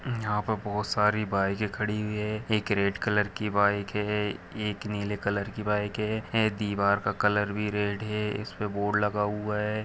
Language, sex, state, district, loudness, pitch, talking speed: Hindi, male, Jharkhand, Sahebganj, -28 LUFS, 105 Hz, 200 wpm